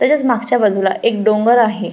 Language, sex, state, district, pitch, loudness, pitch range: Marathi, female, Maharashtra, Pune, 230 Hz, -14 LUFS, 215-240 Hz